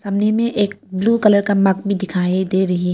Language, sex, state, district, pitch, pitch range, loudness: Hindi, female, Arunachal Pradesh, Papum Pare, 200 Hz, 190-205 Hz, -17 LUFS